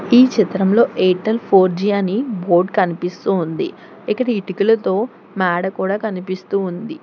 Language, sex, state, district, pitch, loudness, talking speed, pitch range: Telugu, female, Telangana, Hyderabad, 195 Hz, -18 LUFS, 130 wpm, 185-220 Hz